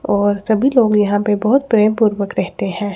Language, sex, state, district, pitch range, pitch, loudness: Hindi, female, Chandigarh, Chandigarh, 205-220 Hz, 210 Hz, -15 LUFS